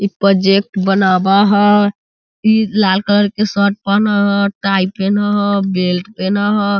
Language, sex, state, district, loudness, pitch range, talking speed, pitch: Hindi, male, Bihar, Sitamarhi, -14 LUFS, 195-205 Hz, 150 wpm, 200 Hz